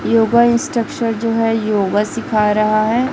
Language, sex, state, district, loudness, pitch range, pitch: Hindi, female, Chhattisgarh, Raipur, -16 LUFS, 215-235 Hz, 225 Hz